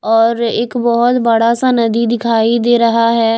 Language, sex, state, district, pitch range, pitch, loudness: Hindi, female, Maharashtra, Mumbai Suburban, 230-235 Hz, 235 Hz, -13 LUFS